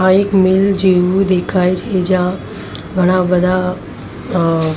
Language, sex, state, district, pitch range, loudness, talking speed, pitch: Gujarati, female, Maharashtra, Mumbai Suburban, 180-190 Hz, -14 LUFS, 125 wpm, 185 Hz